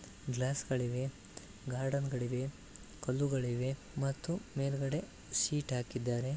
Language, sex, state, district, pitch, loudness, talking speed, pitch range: Kannada, male, Karnataka, Bellary, 130 Hz, -37 LUFS, 75 wpm, 125-140 Hz